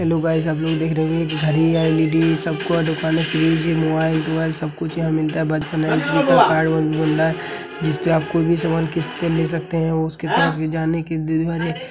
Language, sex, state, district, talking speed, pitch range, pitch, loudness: Hindi, male, Uttar Pradesh, Hamirpur, 210 wpm, 160-165 Hz, 160 Hz, -19 LUFS